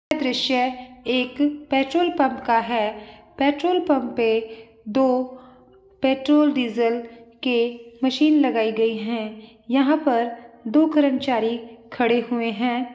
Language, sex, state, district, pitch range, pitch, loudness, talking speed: Hindi, female, Bihar, East Champaran, 230-275 Hz, 250 Hz, -21 LUFS, 105 wpm